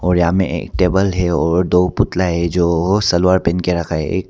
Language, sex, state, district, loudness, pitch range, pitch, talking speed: Hindi, male, Arunachal Pradesh, Papum Pare, -16 LUFS, 85-95 Hz, 90 Hz, 235 wpm